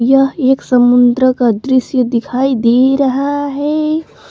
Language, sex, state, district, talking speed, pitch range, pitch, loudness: Hindi, female, Jharkhand, Palamu, 125 wpm, 245-275 Hz, 260 Hz, -12 LUFS